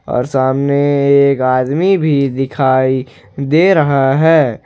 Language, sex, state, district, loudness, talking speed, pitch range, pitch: Hindi, male, Jharkhand, Ranchi, -12 LUFS, 115 wpm, 130-145 Hz, 140 Hz